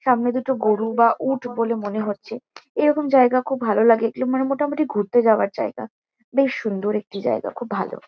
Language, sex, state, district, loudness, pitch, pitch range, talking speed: Bengali, female, West Bengal, Kolkata, -21 LUFS, 240 Hz, 215-265 Hz, 185 wpm